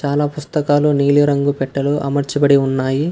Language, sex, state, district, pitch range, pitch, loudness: Telugu, male, Karnataka, Bangalore, 140-145 Hz, 145 Hz, -16 LUFS